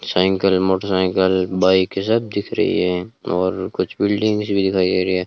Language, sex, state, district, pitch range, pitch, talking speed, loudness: Hindi, male, Rajasthan, Bikaner, 95-100 Hz, 95 Hz, 170 wpm, -19 LUFS